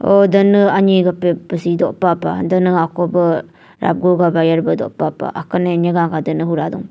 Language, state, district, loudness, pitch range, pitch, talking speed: Nyishi, Arunachal Pradesh, Papum Pare, -15 LUFS, 170-185 Hz, 175 Hz, 175 wpm